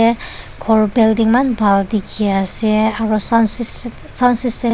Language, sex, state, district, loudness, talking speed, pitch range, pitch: Nagamese, female, Nagaland, Dimapur, -15 LUFS, 90 wpm, 215-235 Hz, 225 Hz